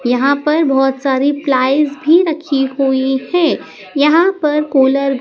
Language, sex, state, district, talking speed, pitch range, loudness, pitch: Hindi, male, Madhya Pradesh, Dhar, 150 wpm, 270-300 Hz, -14 LUFS, 280 Hz